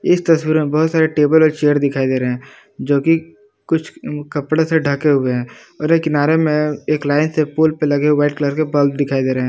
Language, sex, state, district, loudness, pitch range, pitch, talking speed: Hindi, male, Jharkhand, Palamu, -16 LUFS, 145-160 Hz, 150 Hz, 255 wpm